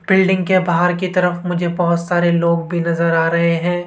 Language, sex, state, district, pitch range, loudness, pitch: Hindi, male, Rajasthan, Jaipur, 170-180 Hz, -16 LUFS, 175 Hz